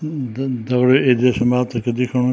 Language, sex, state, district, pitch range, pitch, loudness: Garhwali, male, Uttarakhand, Tehri Garhwal, 125-130 Hz, 125 Hz, -18 LUFS